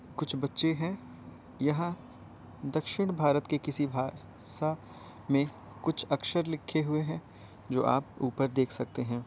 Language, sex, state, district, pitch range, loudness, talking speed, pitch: Hindi, male, Uttar Pradesh, Varanasi, 120-155 Hz, -32 LUFS, 140 wpm, 140 Hz